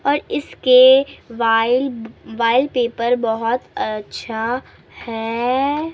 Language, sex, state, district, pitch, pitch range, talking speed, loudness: Hindi, female, Bihar, Kishanganj, 245 Hz, 230-265 Hz, 80 wpm, -18 LUFS